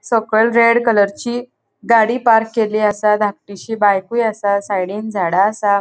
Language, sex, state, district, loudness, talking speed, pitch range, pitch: Konkani, female, Goa, North and South Goa, -15 LUFS, 135 wpm, 200-230 Hz, 215 Hz